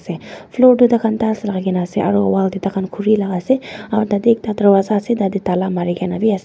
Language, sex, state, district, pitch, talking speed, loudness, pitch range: Nagamese, female, Nagaland, Dimapur, 200 Hz, 215 wpm, -16 LUFS, 185-220 Hz